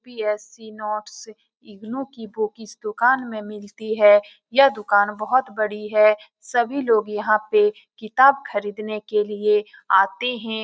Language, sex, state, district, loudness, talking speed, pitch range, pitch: Hindi, female, Bihar, Saran, -20 LUFS, 160 wpm, 210-235 Hz, 215 Hz